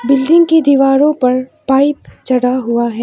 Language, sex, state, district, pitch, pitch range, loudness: Hindi, female, Arunachal Pradesh, Papum Pare, 270 Hz, 250-285 Hz, -12 LUFS